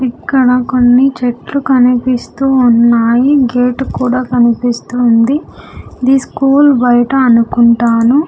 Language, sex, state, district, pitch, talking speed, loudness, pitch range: Telugu, female, Andhra Pradesh, Sri Satya Sai, 250 Hz, 85 wpm, -10 LUFS, 240-265 Hz